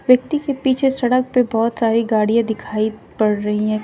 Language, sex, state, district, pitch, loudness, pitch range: Hindi, female, Uttar Pradesh, Shamli, 230 Hz, -18 LUFS, 215-255 Hz